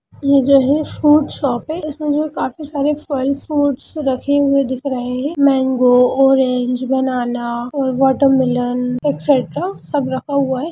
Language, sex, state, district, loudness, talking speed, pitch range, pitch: Hindi, male, Bihar, Darbhanga, -16 LUFS, 150 wpm, 255-290 Hz, 275 Hz